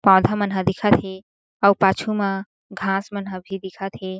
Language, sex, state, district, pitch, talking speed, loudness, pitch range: Chhattisgarhi, female, Chhattisgarh, Jashpur, 195 Hz, 200 wpm, -21 LUFS, 190-200 Hz